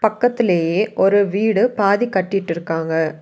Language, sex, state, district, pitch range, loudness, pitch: Tamil, female, Tamil Nadu, Nilgiris, 165-215 Hz, -18 LUFS, 195 Hz